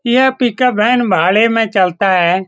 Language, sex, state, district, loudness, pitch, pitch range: Hindi, male, Bihar, Saran, -12 LUFS, 225 Hz, 185-245 Hz